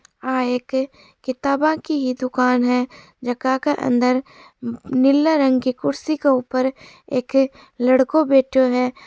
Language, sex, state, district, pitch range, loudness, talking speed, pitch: Marwari, female, Rajasthan, Churu, 250-275 Hz, -19 LUFS, 120 wpm, 260 Hz